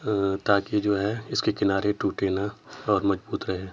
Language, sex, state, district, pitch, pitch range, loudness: Hindi, male, Uttar Pradesh, Etah, 100 Hz, 95-105 Hz, -26 LUFS